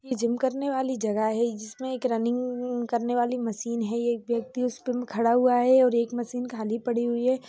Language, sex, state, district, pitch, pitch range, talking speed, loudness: Hindi, female, Maharashtra, Aurangabad, 240 Hz, 235-250 Hz, 215 wpm, -26 LUFS